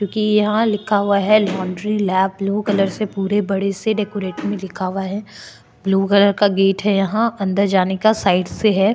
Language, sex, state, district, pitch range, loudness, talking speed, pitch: Hindi, female, Maharashtra, Chandrapur, 195-210 Hz, -18 LUFS, 200 wpm, 200 Hz